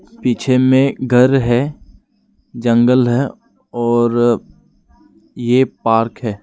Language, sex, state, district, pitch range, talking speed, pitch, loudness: Hindi, male, Arunachal Pradesh, Lower Dibang Valley, 120-130 Hz, 95 wpm, 120 Hz, -15 LUFS